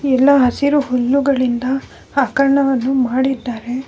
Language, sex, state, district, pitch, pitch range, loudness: Kannada, female, Karnataka, Bellary, 265 Hz, 250-275 Hz, -16 LUFS